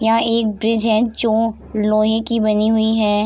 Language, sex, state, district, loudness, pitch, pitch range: Hindi, female, Uttar Pradesh, Jalaun, -17 LUFS, 220 Hz, 215-225 Hz